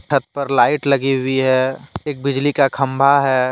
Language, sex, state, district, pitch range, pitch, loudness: Hindi, male, Jharkhand, Deoghar, 130-140 Hz, 135 Hz, -17 LUFS